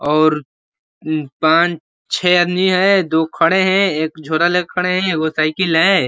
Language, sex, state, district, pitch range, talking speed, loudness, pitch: Hindi, male, Uttar Pradesh, Ghazipur, 155-185 Hz, 170 wpm, -15 LUFS, 165 Hz